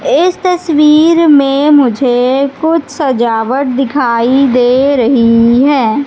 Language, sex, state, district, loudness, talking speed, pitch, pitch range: Hindi, female, Madhya Pradesh, Katni, -9 LUFS, 100 wpm, 275 Hz, 245-300 Hz